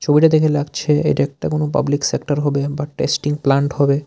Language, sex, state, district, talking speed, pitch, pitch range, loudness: Bengali, male, Tripura, Unakoti, 190 wpm, 145 Hz, 140-150 Hz, -18 LUFS